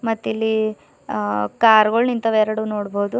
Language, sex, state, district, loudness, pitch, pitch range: Kannada, female, Karnataka, Bidar, -19 LUFS, 215 Hz, 205-225 Hz